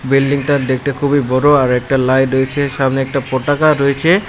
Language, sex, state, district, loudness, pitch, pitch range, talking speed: Bengali, male, Tripura, Unakoti, -14 LUFS, 135 Hz, 130-145 Hz, 170 wpm